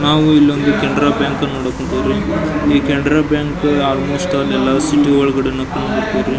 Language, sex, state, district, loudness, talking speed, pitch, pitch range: Kannada, male, Karnataka, Belgaum, -15 LUFS, 150 wpm, 145 Hz, 140-150 Hz